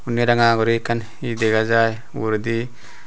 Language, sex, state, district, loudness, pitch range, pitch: Chakma, male, Tripura, Unakoti, -20 LUFS, 110-120 Hz, 115 Hz